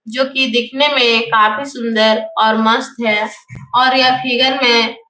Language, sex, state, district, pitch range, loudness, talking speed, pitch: Hindi, female, Bihar, Supaul, 220-260 Hz, -13 LUFS, 165 wpm, 235 Hz